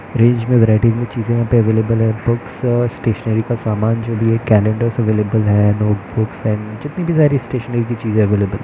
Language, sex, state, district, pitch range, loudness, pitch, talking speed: Hindi, male, Bihar, East Champaran, 110-120 Hz, -16 LUFS, 115 Hz, 195 wpm